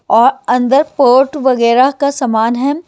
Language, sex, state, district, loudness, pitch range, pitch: Hindi, female, Haryana, Jhajjar, -12 LUFS, 250-280 Hz, 265 Hz